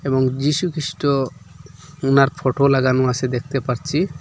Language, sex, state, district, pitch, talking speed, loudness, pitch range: Bengali, male, Assam, Hailakandi, 135 Hz, 130 wpm, -19 LUFS, 130-150 Hz